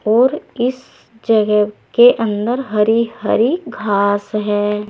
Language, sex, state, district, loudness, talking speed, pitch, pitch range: Hindi, female, Uttar Pradesh, Saharanpur, -16 LUFS, 110 wpm, 220 Hz, 210-240 Hz